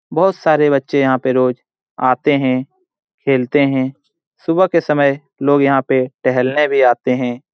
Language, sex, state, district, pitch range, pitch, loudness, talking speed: Hindi, male, Bihar, Jamui, 130-150 Hz, 135 Hz, -15 LUFS, 160 wpm